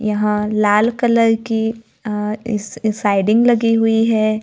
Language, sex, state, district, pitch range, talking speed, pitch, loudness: Hindi, female, Maharashtra, Gondia, 210-225 Hz, 120 wpm, 220 Hz, -16 LUFS